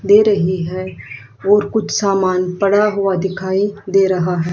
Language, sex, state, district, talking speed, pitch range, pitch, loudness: Hindi, female, Haryana, Rohtak, 160 wpm, 185-205 Hz, 190 Hz, -16 LUFS